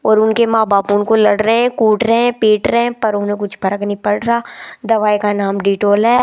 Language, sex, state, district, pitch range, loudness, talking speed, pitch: Hindi, female, Rajasthan, Jaipur, 205-230 Hz, -14 LUFS, 220 wpm, 215 Hz